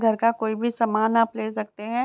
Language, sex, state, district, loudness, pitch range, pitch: Hindi, female, Bihar, Begusarai, -24 LUFS, 220-230 Hz, 225 Hz